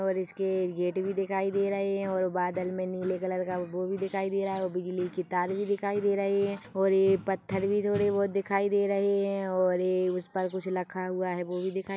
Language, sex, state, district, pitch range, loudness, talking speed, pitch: Hindi, female, Chhattisgarh, Bilaspur, 185-195 Hz, -29 LUFS, 245 wpm, 190 Hz